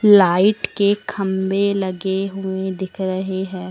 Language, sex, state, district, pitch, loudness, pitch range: Hindi, female, Uttar Pradesh, Lucknow, 190 Hz, -19 LUFS, 190-200 Hz